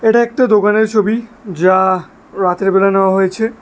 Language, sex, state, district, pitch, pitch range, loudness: Bengali, male, Tripura, West Tripura, 205 Hz, 190-225 Hz, -13 LUFS